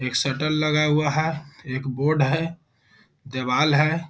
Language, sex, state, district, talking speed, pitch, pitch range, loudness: Hindi, male, Bihar, Jahanabad, 145 wpm, 150 Hz, 130-155 Hz, -22 LUFS